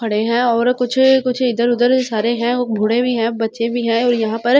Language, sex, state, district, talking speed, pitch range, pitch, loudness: Hindi, female, Delhi, New Delhi, 260 wpm, 230-245 Hz, 240 Hz, -16 LUFS